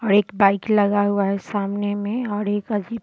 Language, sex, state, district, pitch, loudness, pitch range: Hindi, female, Bihar, Sitamarhi, 205 Hz, -21 LUFS, 200-210 Hz